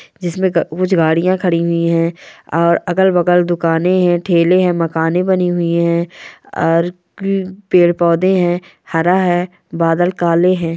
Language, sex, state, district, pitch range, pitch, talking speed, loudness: Hindi, female, Bihar, Saran, 170-180 Hz, 175 Hz, 135 wpm, -15 LUFS